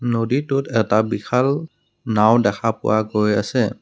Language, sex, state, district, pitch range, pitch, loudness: Assamese, male, Assam, Kamrup Metropolitan, 110-125 Hz, 115 Hz, -19 LUFS